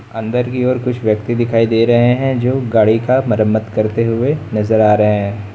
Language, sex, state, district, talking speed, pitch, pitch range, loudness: Hindi, male, Uttar Pradesh, Lucknow, 205 wpm, 115 Hz, 110-125 Hz, -14 LUFS